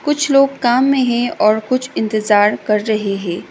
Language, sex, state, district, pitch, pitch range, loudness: Hindi, female, Sikkim, Gangtok, 235 Hz, 210-265 Hz, -15 LUFS